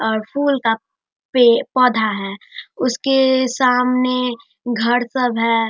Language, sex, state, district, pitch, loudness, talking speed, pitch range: Hindi, male, Bihar, Darbhanga, 245 Hz, -17 LUFS, 115 wpm, 225-255 Hz